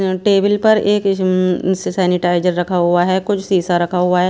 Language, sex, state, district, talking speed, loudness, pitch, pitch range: Hindi, female, Himachal Pradesh, Shimla, 170 wpm, -15 LUFS, 185 Hz, 180-195 Hz